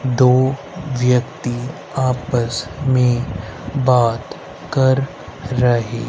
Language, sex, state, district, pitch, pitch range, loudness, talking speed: Hindi, male, Haryana, Rohtak, 125 Hz, 120-130 Hz, -18 LUFS, 70 wpm